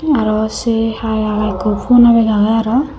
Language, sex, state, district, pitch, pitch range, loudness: Chakma, female, Tripura, Unakoti, 225 Hz, 215-235 Hz, -14 LUFS